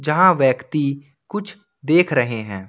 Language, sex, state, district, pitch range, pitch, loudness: Hindi, male, Jharkhand, Ranchi, 130-185 Hz, 145 Hz, -19 LUFS